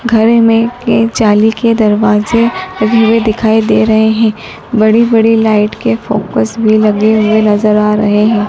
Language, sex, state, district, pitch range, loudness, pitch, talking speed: Hindi, male, Madhya Pradesh, Dhar, 215-225 Hz, -10 LUFS, 220 Hz, 155 wpm